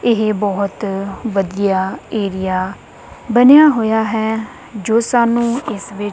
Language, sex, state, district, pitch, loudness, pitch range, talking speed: Punjabi, female, Punjab, Kapurthala, 215 Hz, -16 LUFS, 195-235 Hz, 110 wpm